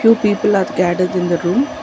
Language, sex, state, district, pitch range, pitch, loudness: English, female, Karnataka, Bangalore, 180-225 Hz, 195 Hz, -16 LUFS